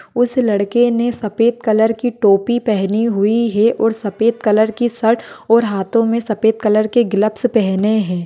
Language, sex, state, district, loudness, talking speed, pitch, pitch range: Hindi, male, Maharashtra, Dhule, -15 LUFS, 175 wpm, 225 Hz, 210-235 Hz